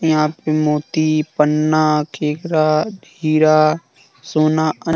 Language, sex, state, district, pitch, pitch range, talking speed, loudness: Hindi, male, Jharkhand, Deoghar, 155 Hz, 150-155 Hz, 110 wpm, -17 LUFS